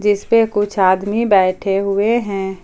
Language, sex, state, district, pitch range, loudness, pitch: Hindi, female, Jharkhand, Ranchi, 190-210 Hz, -16 LUFS, 200 Hz